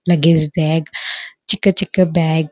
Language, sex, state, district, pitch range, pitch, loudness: Kannada, female, Karnataka, Belgaum, 160-185 Hz, 170 Hz, -16 LUFS